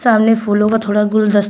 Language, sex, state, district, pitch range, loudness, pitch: Hindi, female, Uttar Pradesh, Shamli, 210-225 Hz, -14 LUFS, 215 Hz